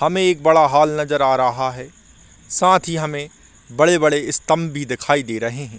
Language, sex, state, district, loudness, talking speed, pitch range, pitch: Hindi, male, Chhattisgarh, Korba, -17 LUFS, 175 wpm, 120-155 Hz, 145 Hz